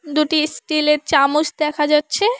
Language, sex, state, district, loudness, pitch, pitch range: Bengali, female, West Bengal, Alipurduar, -17 LUFS, 300 Hz, 300-310 Hz